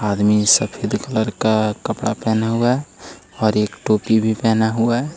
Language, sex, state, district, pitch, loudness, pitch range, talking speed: Hindi, male, Jharkhand, Ranchi, 110 Hz, -18 LUFS, 105-115 Hz, 175 wpm